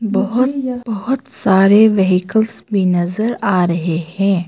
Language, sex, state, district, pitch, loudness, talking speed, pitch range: Hindi, female, Arunachal Pradesh, Papum Pare, 200 Hz, -15 LUFS, 120 wpm, 185-225 Hz